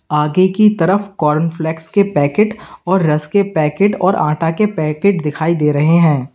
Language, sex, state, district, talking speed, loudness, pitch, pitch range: Hindi, male, Uttar Pradesh, Lalitpur, 170 wpm, -14 LUFS, 165 Hz, 150-200 Hz